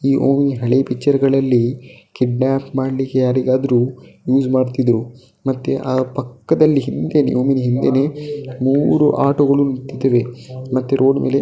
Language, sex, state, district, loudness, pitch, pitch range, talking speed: Kannada, male, Karnataka, Dakshina Kannada, -17 LUFS, 130 Hz, 130-135 Hz, 115 wpm